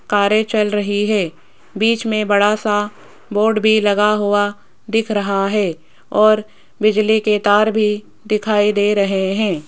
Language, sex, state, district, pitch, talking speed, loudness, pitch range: Hindi, female, Rajasthan, Jaipur, 210 Hz, 150 wpm, -16 LUFS, 205-215 Hz